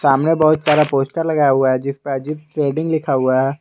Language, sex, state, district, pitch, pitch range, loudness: Hindi, male, Jharkhand, Garhwa, 145 Hz, 135-155 Hz, -17 LUFS